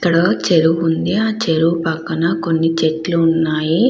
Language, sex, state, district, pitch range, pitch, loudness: Telugu, female, Andhra Pradesh, Krishna, 160-170 Hz, 165 Hz, -16 LUFS